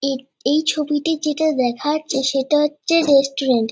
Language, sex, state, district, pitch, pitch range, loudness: Bengali, female, West Bengal, Kolkata, 290 Hz, 270-305 Hz, -19 LUFS